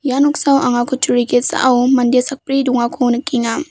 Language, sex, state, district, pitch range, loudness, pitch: Garo, female, Meghalaya, West Garo Hills, 245-275 Hz, -15 LUFS, 255 Hz